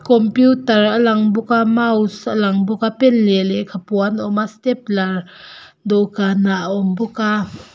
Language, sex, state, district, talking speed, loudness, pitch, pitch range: Mizo, female, Mizoram, Aizawl, 170 wpm, -16 LUFS, 215 Hz, 200-225 Hz